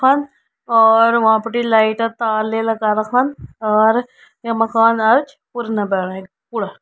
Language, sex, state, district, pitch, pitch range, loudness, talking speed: Hindi, female, Uttarakhand, Uttarkashi, 225 Hz, 215-240 Hz, -16 LUFS, 130 wpm